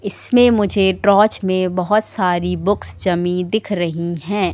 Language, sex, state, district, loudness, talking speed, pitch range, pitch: Hindi, female, Madhya Pradesh, Katni, -17 LUFS, 145 wpm, 180-205 Hz, 190 Hz